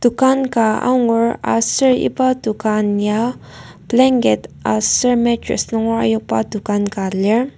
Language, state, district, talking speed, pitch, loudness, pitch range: Ao, Nagaland, Kohima, 120 wpm, 225 Hz, -16 LUFS, 205-250 Hz